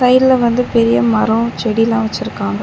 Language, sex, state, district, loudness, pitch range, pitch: Tamil, female, Tamil Nadu, Chennai, -14 LUFS, 215-245 Hz, 230 Hz